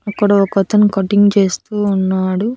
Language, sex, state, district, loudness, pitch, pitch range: Telugu, female, Andhra Pradesh, Annamaya, -14 LUFS, 200 Hz, 195-205 Hz